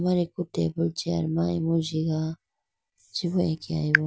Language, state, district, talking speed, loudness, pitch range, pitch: Idu Mishmi, Arunachal Pradesh, Lower Dibang Valley, 135 wpm, -27 LUFS, 160-175 Hz, 165 Hz